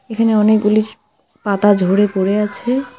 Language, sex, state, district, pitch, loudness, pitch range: Bengali, female, West Bengal, Alipurduar, 210 Hz, -15 LUFS, 205-225 Hz